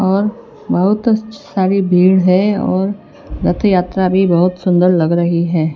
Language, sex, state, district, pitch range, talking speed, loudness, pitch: Hindi, female, Chhattisgarh, Raipur, 180-200 Hz, 135 wpm, -14 LUFS, 185 Hz